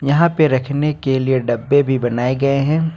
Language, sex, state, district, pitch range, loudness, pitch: Hindi, male, Jharkhand, Ranchi, 130-150 Hz, -17 LUFS, 140 Hz